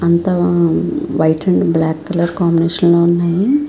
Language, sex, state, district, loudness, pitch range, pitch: Telugu, female, Andhra Pradesh, Visakhapatnam, -14 LUFS, 165-175 Hz, 170 Hz